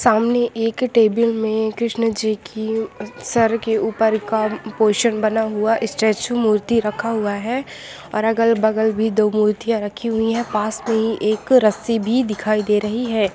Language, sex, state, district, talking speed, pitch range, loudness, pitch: Hindi, female, Bihar, Saran, 160 wpm, 215-230 Hz, -19 LUFS, 220 Hz